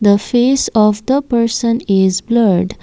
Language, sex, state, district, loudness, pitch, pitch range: English, female, Assam, Kamrup Metropolitan, -14 LUFS, 225 Hz, 200-240 Hz